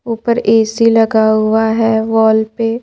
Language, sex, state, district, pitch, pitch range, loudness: Hindi, female, Madhya Pradesh, Bhopal, 225 Hz, 220-230 Hz, -12 LUFS